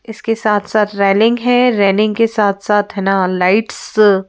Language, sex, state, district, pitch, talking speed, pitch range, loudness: Hindi, female, Madhya Pradesh, Bhopal, 210 Hz, 180 wpm, 200-225 Hz, -14 LUFS